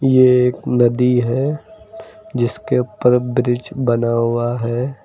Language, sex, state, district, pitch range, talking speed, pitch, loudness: Hindi, male, Uttar Pradesh, Lucknow, 120-135 Hz, 120 wpm, 125 Hz, -17 LUFS